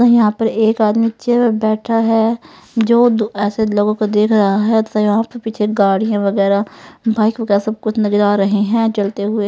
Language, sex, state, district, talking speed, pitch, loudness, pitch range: Hindi, female, Punjab, Fazilka, 200 wpm, 215 Hz, -15 LUFS, 205-225 Hz